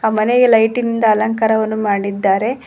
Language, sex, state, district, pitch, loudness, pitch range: Kannada, female, Karnataka, Koppal, 220 Hz, -15 LUFS, 215-230 Hz